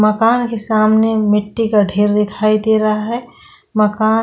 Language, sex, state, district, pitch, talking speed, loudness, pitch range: Hindi, female, Chhattisgarh, Korba, 215 Hz, 170 wpm, -15 LUFS, 210-225 Hz